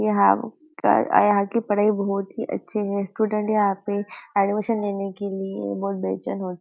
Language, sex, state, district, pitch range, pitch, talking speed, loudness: Hindi, female, Maharashtra, Nagpur, 195-215 Hz, 200 Hz, 180 wpm, -23 LUFS